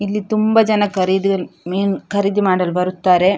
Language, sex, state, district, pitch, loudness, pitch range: Kannada, female, Karnataka, Dakshina Kannada, 195 Hz, -17 LUFS, 185-205 Hz